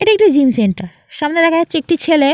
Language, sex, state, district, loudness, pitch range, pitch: Bengali, female, West Bengal, Jalpaiguri, -14 LUFS, 275-335 Hz, 315 Hz